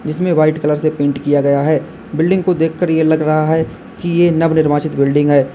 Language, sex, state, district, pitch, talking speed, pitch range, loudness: Hindi, male, Uttar Pradesh, Lalitpur, 155 Hz, 215 wpm, 145-165 Hz, -14 LUFS